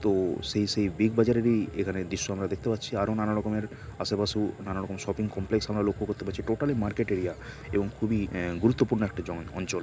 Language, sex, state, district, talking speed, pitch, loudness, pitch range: Bengali, male, West Bengal, Purulia, 190 wpm, 105 Hz, -29 LUFS, 95-110 Hz